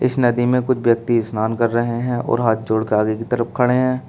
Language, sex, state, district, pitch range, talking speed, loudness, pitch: Hindi, male, Uttar Pradesh, Shamli, 110-125 Hz, 250 wpm, -18 LUFS, 120 Hz